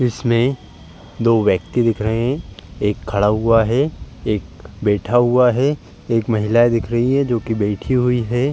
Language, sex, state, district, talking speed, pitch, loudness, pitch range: Hindi, male, Uttar Pradesh, Jalaun, 170 wpm, 115 Hz, -18 LUFS, 105-125 Hz